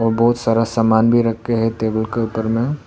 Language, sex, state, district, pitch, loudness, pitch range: Hindi, male, Arunachal Pradesh, Papum Pare, 115 Hz, -17 LUFS, 110-120 Hz